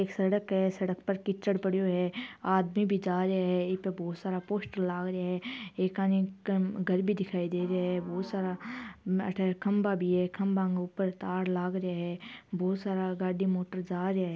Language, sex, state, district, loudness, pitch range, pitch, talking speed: Marwari, female, Rajasthan, Churu, -31 LUFS, 180-195 Hz, 185 Hz, 195 wpm